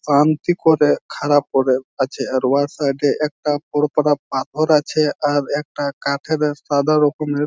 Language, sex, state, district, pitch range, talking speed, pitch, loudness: Bengali, male, West Bengal, Jhargram, 140-150 Hz, 155 wpm, 145 Hz, -18 LUFS